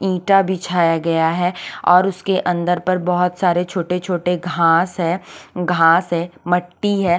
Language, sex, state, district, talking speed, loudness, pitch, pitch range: Hindi, female, Chandigarh, Chandigarh, 150 wpm, -18 LUFS, 180 Hz, 175-185 Hz